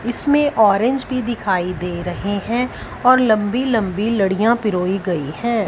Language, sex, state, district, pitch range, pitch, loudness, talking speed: Hindi, female, Punjab, Fazilka, 190-240 Hz, 215 Hz, -18 LUFS, 150 wpm